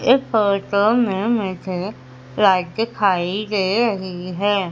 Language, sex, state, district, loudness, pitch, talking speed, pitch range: Hindi, female, Madhya Pradesh, Umaria, -19 LUFS, 200 Hz, 115 wpm, 185-215 Hz